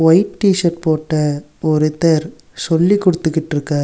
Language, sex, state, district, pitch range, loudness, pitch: Tamil, male, Tamil Nadu, Nilgiris, 155-170 Hz, -16 LUFS, 160 Hz